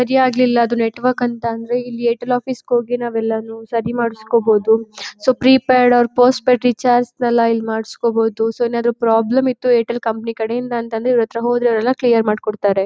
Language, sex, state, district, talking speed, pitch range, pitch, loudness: Kannada, female, Karnataka, Chamarajanagar, 175 wpm, 225-245 Hz, 235 Hz, -16 LUFS